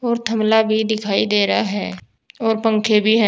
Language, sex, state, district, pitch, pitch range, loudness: Hindi, female, Uttar Pradesh, Saharanpur, 220 Hz, 210-225 Hz, -18 LUFS